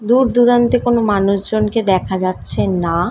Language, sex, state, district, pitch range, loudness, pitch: Bengali, female, West Bengal, Dakshin Dinajpur, 190-240 Hz, -15 LUFS, 210 Hz